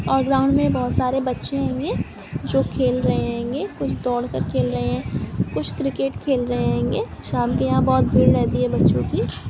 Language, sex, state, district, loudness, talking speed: Hindi, female, Rajasthan, Nagaur, -21 LUFS, 185 wpm